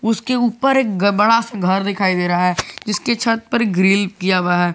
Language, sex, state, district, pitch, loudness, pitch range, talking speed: Hindi, male, Jharkhand, Garhwa, 200 Hz, -17 LUFS, 185-230 Hz, 215 wpm